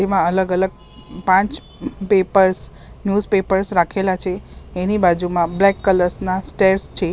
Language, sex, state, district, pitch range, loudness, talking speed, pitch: Gujarati, female, Maharashtra, Mumbai Suburban, 185-195 Hz, -18 LUFS, 135 wpm, 190 Hz